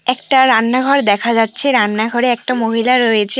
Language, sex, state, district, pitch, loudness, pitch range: Bengali, female, West Bengal, Cooch Behar, 245 Hz, -14 LUFS, 225-255 Hz